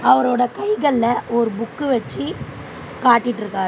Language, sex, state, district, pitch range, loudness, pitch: Tamil, female, Tamil Nadu, Chennai, 230-255 Hz, -19 LUFS, 240 Hz